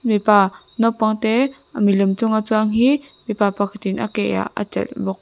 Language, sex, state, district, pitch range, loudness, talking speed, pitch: Mizo, female, Mizoram, Aizawl, 200-230 Hz, -19 LUFS, 175 wpm, 215 Hz